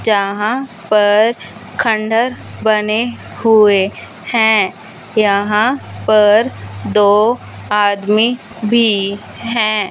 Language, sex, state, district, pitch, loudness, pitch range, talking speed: Hindi, female, Punjab, Fazilka, 215 Hz, -14 LUFS, 205-225 Hz, 75 wpm